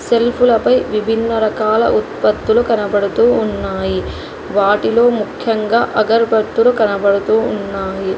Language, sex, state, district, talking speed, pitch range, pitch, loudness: Telugu, female, Telangana, Hyderabad, 90 wpm, 200-230 Hz, 220 Hz, -15 LUFS